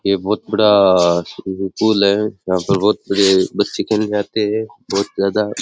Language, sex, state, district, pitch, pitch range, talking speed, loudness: Rajasthani, male, Rajasthan, Churu, 100 Hz, 95-105 Hz, 170 wpm, -16 LUFS